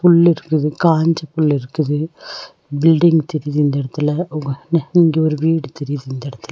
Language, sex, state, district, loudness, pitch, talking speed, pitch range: Tamil, female, Tamil Nadu, Nilgiris, -17 LUFS, 155 Hz, 120 wpm, 145-165 Hz